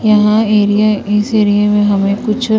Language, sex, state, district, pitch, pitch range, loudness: Hindi, female, Punjab, Kapurthala, 210 Hz, 205-215 Hz, -12 LUFS